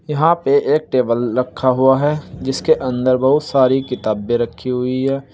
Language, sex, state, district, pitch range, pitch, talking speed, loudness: Hindi, male, Uttar Pradesh, Saharanpur, 125-140 Hz, 130 Hz, 170 wpm, -17 LUFS